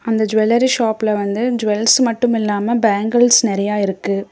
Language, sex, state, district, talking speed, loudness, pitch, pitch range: Tamil, female, Tamil Nadu, Namakkal, 140 wpm, -15 LUFS, 220 Hz, 205-240 Hz